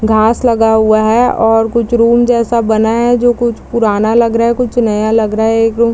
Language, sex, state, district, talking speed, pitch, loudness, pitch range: Hindi, female, Bihar, Madhepura, 240 wpm, 230 Hz, -11 LUFS, 220-235 Hz